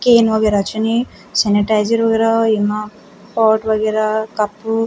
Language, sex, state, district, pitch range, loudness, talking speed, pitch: Garhwali, female, Uttarakhand, Tehri Garhwal, 210-225 Hz, -16 LUFS, 150 wpm, 220 Hz